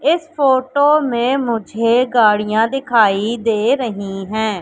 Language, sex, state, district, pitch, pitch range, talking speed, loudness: Hindi, female, Madhya Pradesh, Katni, 235 Hz, 215-265 Hz, 115 wpm, -16 LUFS